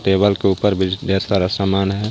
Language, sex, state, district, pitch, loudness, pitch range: Hindi, male, Jharkhand, Garhwa, 95 Hz, -18 LUFS, 95-100 Hz